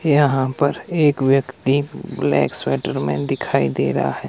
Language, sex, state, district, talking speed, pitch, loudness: Hindi, male, Himachal Pradesh, Shimla, 155 wpm, 135 Hz, -19 LUFS